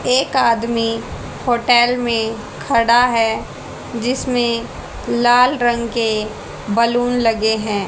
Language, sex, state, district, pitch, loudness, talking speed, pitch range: Hindi, female, Haryana, Charkhi Dadri, 235 Hz, -17 LUFS, 100 wpm, 225-245 Hz